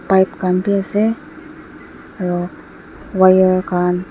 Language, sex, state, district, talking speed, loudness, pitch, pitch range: Nagamese, female, Nagaland, Dimapur, 100 wpm, -16 LUFS, 190 Hz, 180-205 Hz